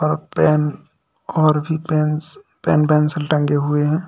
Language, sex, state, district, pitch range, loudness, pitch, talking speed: Hindi, male, Uttar Pradesh, Lalitpur, 150-155 Hz, -18 LUFS, 155 Hz, 145 wpm